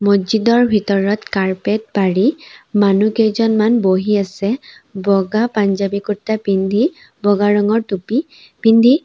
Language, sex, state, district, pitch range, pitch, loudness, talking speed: Assamese, female, Assam, Sonitpur, 200-225 Hz, 210 Hz, -16 LUFS, 100 wpm